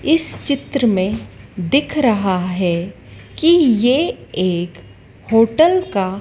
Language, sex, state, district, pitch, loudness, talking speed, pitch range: Hindi, female, Madhya Pradesh, Dhar, 200 Hz, -16 LUFS, 105 wpm, 175-280 Hz